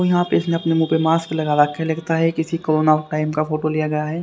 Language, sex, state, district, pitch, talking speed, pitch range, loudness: Hindi, male, Haryana, Rohtak, 160 Hz, 285 wpm, 155-165 Hz, -19 LUFS